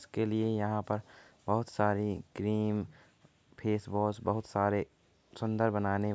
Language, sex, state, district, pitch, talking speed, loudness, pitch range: Hindi, male, Uttar Pradesh, Varanasi, 105 Hz, 125 wpm, -33 LUFS, 100-110 Hz